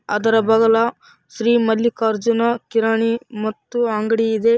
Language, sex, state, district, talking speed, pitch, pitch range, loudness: Kannada, female, Karnataka, Raichur, 105 wpm, 225 Hz, 220-235 Hz, -18 LUFS